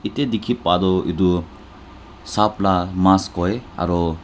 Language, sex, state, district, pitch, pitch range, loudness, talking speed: Nagamese, male, Nagaland, Dimapur, 95 Hz, 90-100 Hz, -20 LUFS, 155 wpm